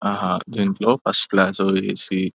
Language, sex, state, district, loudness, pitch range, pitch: Telugu, male, Telangana, Nalgonda, -19 LUFS, 95-100 Hz, 95 Hz